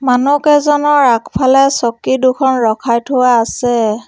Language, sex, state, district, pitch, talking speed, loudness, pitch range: Assamese, female, Assam, Sonitpur, 255 Hz, 105 wpm, -12 LUFS, 235-275 Hz